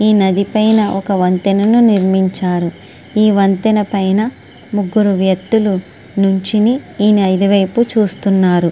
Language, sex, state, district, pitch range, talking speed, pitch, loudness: Telugu, female, Andhra Pradesh, Srikakulam, 190-215 Hz, 110 wpm, 200 Hz, -13 LUFS